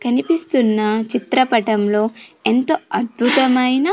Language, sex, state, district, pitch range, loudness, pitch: Telugu, female, Andhra Pradesh, Sri Satya Sai, 220-265 Hz, -17 LUFS, 245 Hz